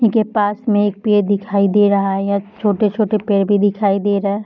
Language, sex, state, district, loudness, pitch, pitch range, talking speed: Hindi, female, Bihar, Darbhanga, -16 LUFS, 205 Hz, 200-210 Hz, 230 wpm